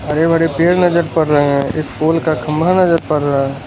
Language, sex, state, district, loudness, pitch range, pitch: Hindi, male, Gujarat, Valsad, -14 LUFS, 145-165 Hz, 155 Hz